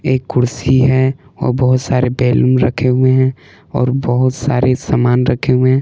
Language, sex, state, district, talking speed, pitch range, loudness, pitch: Hindi, male, Jharkhand, Palamu, 175 wpm, 125-130 Hz, -14 LUFS, 130 Hz